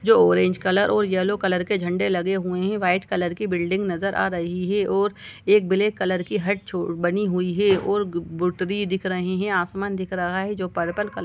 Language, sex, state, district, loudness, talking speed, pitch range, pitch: Hindi, female, Chhattisgarh, Sukma, -23 LUFS, 215 wpm, 180-200 Hz, 190 Hz